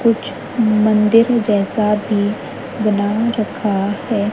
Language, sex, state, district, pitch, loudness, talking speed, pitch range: Hindi, female, Haryana, Jhajjar, 215 Hz, -17 LUFS, 95 wpm, 205-230 Hz